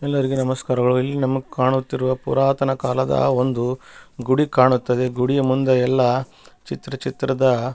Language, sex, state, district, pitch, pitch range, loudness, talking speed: Kannada, male, Karnataka, Bellary, 130 Hz, 125-135 Hz, -20 LUFS, 125 wpm